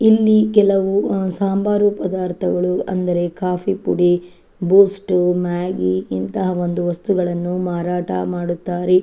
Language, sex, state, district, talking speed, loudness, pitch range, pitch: Kannada, female, Karnataka, Chamarajanagar, 95 wpm, -18 LUFS, 175-195 Hz, 180 Hz